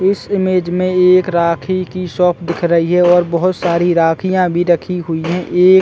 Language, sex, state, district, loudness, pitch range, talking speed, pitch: Hindi, male, Chhattisgarh, Bastar, -14 LUFS, 170-185 Hz, 195 wpm, 180 Hz